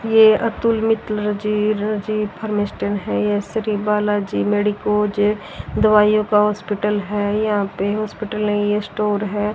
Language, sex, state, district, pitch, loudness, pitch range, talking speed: Hindi, female, Haryana, Rohtak, 210 Hz, -19 LUFS, 205-215 Hz, 140 wpm